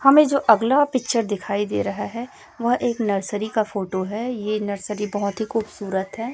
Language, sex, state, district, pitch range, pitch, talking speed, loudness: Hindi, female, Chhattisgarh, Raipur, 200-240 Hz, 215 Hz, 190 wpm, -22 LUFS